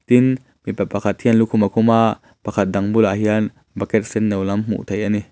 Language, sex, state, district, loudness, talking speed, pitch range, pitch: Mizo, male, Mizoram, Aizawl, -19 LUFS, 225 wpm, 100-115 Hz, 105 Hz